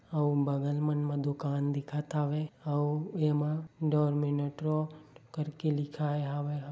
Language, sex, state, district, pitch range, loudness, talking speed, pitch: Chhattisgarhi, male, Chhattisgarh, Bilaspur, 145-155 Hz, -32 LUFS, 125 wpm, 150 Hz